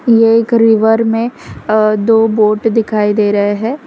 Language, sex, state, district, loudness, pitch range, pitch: Hindi, female, Gujarat, Valsad, -12 LUFS, 215-230 Hz, 225 Hz